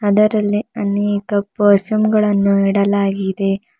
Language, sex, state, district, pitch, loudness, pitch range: Kannada, female, Karnataka, Bidar, 205 Hz, -16 LUFS, 200-210 Hz